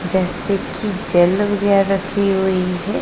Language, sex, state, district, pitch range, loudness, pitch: Hindi, female, Punjab, Pathankot, 185-200 Hz, -17 LUFS, 195 Hz